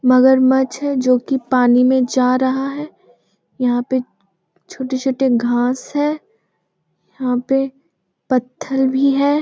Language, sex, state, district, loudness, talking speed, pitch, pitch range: Hindi, female, Bihar, Jamui, -17 LUFS, 120 wpm, 260 Hz, 250-270 Hz